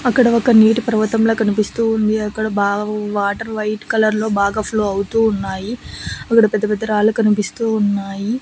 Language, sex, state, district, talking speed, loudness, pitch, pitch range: Telugu, female, Andhra Pradesh, Annamaya, 150 wpm, -17 LUFS, 215 Hz, 210-225 Hz